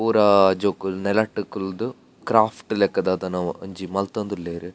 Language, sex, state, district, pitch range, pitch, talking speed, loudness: Tulu, male, Karnataka, Dakshina Kannada, 95-105 Hz, 95 Hz, 115 wpm, -22 LUFS